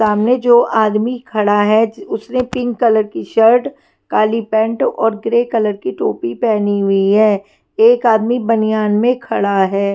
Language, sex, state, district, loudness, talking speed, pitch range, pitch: Hindi, female, Punjab, Kapurthala, -14 LUFS, 165 wpm, 210-245 Hz, 225 Hz